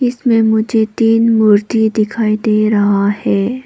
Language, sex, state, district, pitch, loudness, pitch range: Hindi, female, Arunachal Pradesh, Papum Pare, 220 Hz, -13 LUFS, 215-230 Hz